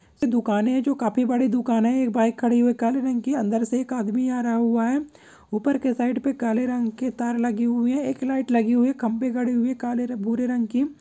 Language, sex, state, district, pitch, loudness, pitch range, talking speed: Hindi, female, Bihar, Samastipur, 245 Hz, -23 LUFS, 235-255 Hz, 255 wpm